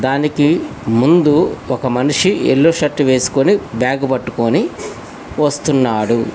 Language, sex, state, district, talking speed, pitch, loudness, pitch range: Telugu, male, Telangana, Hyderabad, 95 wpm, 135 Hz, -15 LUFS, 125-150 Hz